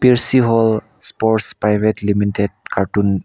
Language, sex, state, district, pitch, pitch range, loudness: Nagamese, male, Nagaland, Kohima, 105 Hz, 100-115 Hz, -16 LUFS